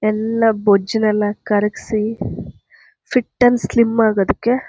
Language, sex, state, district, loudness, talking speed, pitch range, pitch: Kannada, female, Karnataka, Chamarajanagar, -17 LUFS, 115 wpm, 210-245 Hz, 220 Hz